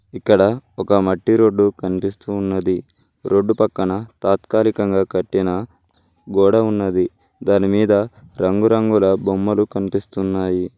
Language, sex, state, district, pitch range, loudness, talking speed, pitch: Telugu, male, Telangana, Mahabubabad, 95-105 Hz, -18 LUFS, 85 wpm, 100 Hz